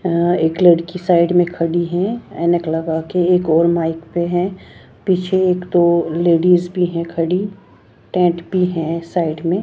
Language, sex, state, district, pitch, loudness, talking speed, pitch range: Hindi, female, Bihar, Patna, 175 Hz, -17 LUFS, 160 wpm, 165-180 Hz